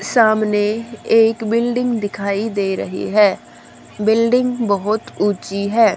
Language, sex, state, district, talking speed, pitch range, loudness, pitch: Hindi, female, Haryana, Rohtak, 110 wpm, 205-230 Hz, -17 LUFS, 215 Hz